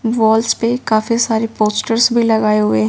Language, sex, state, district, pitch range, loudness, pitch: Hindi, male, Delhi, New Delhi, 215-230 Hz, -15 LUFS, 225 Hz